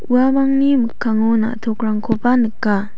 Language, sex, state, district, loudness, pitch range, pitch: Garo, female, Meghalaya, South Garo Hills, -17 LUFS, 220-250 Hz, 230 Hz